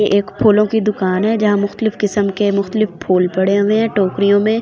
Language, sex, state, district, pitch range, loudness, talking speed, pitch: Hindi, female, Delhi, New Delhi, 195-215 Hz, -15 LUFS, 170 wpm, 205 Hz